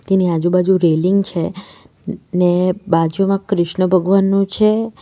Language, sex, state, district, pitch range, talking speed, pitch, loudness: Gujarati, female, Gujarat, Valsad, 175-195 Hz, 105 wpm, 185 Hz, -16 LUFS